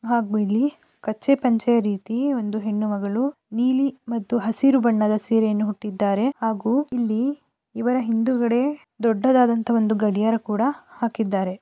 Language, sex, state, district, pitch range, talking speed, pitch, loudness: Kannada, female, Karnataka, Raichur, 215-250 Hz, 120 wpm, 230 Hz, -22 LUFS